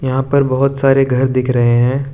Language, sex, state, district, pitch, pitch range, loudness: Hindi, male, Arunachal Pradesh, Lower Dibang Valley, 130 Hz, 130-135 Hz, -14 LUFS